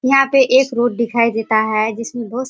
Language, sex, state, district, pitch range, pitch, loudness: Hindi, female, Bihar, Kishanganj, 225-255 Hz, 235 Hz, -16 LUFS